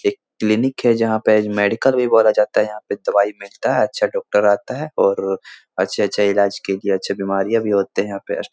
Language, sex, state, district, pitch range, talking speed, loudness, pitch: Hindi, male, Bihar, Jahanabad, 100-125 Hz, 230 wpm, -18 LUFS, 110 Hz